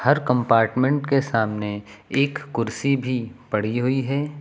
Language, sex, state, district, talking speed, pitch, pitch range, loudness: Hindi, male, Uttar Pradesh, Lucknow, 135 wpm, 125 Hz, 115-140 Hz, -22 LUFS